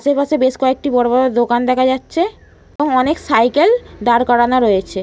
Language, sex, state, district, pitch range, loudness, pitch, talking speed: Bengali, female, West Bengal, Malda, 240-285 Hz, -15 LUFS, 255 Hz, 165 wpm